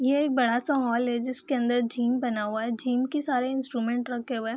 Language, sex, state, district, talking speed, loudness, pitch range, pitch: Hindi, female, Bihar, Madhepura, 250 wpm, -27 LUFS, 235-260 Hz, 245 Hz